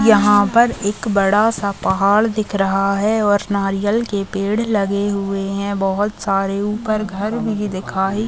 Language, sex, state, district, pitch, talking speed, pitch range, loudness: Hindi, female, Chhattisgarh, Raigarh, 205 Hz, 160 wpm, 195-215 Hz, -18 LUFS